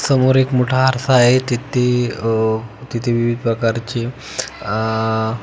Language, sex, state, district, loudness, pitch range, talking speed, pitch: Marathi, male, Maharashtra, Pune, -17 LUFS, 115-125 Hz, 120 wpm, 120 Hz